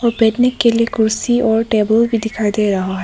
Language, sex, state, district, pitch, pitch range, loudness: Hindi, female, Arunachal Pradesh, Papum Pare, 225 Hz, 215-235 Hz, -15 LUFS